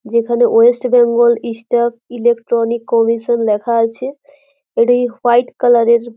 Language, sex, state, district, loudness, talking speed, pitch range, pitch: Bengali, female, West Bengal, Jhargram, -14 LUFS, 115 wpm, 230-245 Hz, 235 Hz